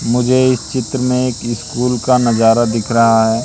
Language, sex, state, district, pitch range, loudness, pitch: Hindi, male, Madhya Pradesh, Katni, 115-125 Hz, -14 LUFS, 120 Hz